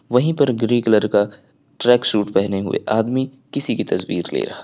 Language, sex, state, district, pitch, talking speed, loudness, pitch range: Hindi, male, Uttar Pradesh, Lucknow, 120 Hz, 205 wpm, -19 LUFS, 105-130 Hz